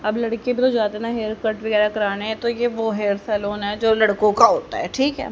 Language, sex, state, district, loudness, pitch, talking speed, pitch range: Hindi, female, Haryana, Rohtak, -20 LUFS, 220 Hz, 270 wpm, 210-230 Hz